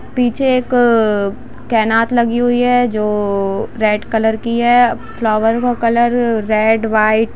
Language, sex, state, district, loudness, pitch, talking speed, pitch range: Hindi, female, Jharkhand, Jamtara, -14 LUFS, 230 Hz, 140 wpm, 215-240 Hz